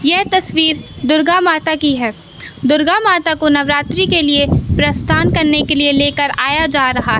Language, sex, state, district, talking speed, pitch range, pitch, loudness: Hindi, male, Madhya Pradesh, Katni, 165 wpm, 285-320 Hz, 300 Hz, -13 LUFS